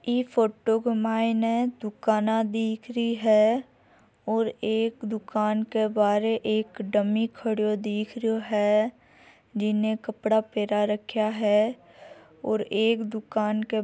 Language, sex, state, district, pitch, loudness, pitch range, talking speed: Marwari, female, Rajasthan, Nagaur, 220 Hz, -26 LUFS, 215-225 Hz, 125 wpm